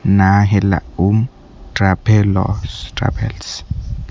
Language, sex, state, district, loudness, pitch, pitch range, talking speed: Odia, male, Odisha, Khordha, -16 LUFS, 100 Hz, 90-105 Hz, 90 wpm